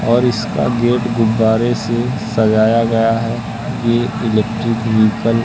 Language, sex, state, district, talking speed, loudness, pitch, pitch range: Hindi, male, Madhya Pradesh, Katni, 130 wpm, -15 LUFS, 115 Hz, 110-120 Hz